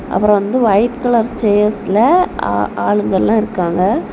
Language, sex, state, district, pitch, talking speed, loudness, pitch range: Tamil, female, Tamil Nadu, Kanyakumari, 210 Hz, 130 wpm, -14 LUFS, 180-230 Hz